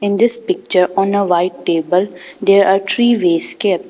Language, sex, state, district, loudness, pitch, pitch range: English, female, Arunachal Pradesh, Papum Pare, -14 LUFS, 195 Hz, 180-205 Hz